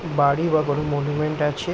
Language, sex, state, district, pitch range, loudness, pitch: Bengali, male, West Bengal, Jhargram, 145-160 Hz, -22 LUFS, 150 Hz